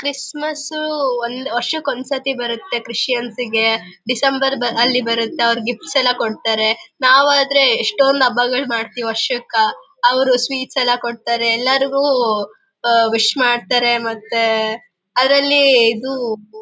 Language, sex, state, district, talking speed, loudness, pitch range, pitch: Kannada, female, Karnataka, Bellary, 110 wpm, -16 LUFS, 230-270 Hz, 245 Hz